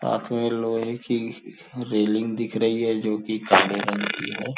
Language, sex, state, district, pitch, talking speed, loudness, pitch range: Hindi, male, Uttar Pradesh, Gorakhpur, 115 Hz, 185 wpm, -24 LUFS, 110-115 Hz